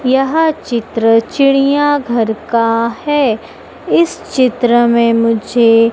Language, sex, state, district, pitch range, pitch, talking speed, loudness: Hindi, female, Madhya Pradesh, Dhar, 230-275 Hz, 235 Hz, 90 wpm, -13 LUFS